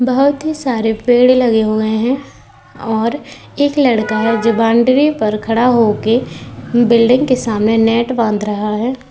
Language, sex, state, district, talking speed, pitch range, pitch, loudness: Hindi, female, Uttar Pradesh, Muzaffarnagar, 150 wpm, 220-255 Hz, 235 Hz, -14 LUFS